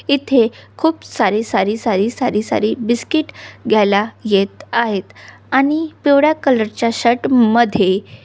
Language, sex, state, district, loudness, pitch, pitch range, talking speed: Marathi, female, Maharashtra, Solapur, -16 LUFS, 235 Hz, 210-265 Hz, 130 wpm